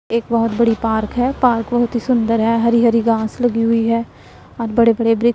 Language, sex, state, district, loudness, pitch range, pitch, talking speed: Hindi, male, Punjab, Pathankot, -16 LUFS, 230-235 Hz, 230 Hz, 225 wpm